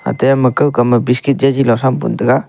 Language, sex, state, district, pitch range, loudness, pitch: Wancho, male, Arunachal Pradesh, Longding, 120-135 Hz, -13 LUFS, 130 Hz